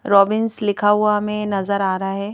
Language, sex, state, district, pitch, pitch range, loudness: Hindi, female, Madhya Pradesh, Bhopal, 205 Hz, 200-210 Hz, -19 LUFS